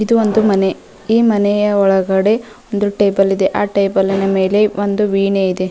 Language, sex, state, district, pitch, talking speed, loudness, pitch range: Kannada, female, Karnataka, Dharwad, 200 Hz, 145 wpm, -14 LUFS, 195-210 Hz